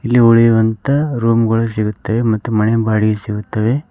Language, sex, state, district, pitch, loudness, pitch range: Kannada, male, Karnataka, Koppal, 115 Hz, -15 LUFS, 110-115 Hz